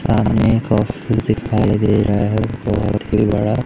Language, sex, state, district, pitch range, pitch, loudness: Hindi, male, Madhya Pradesh, Umaria, 105-110 Hz, 105 Hz, -17 LUFS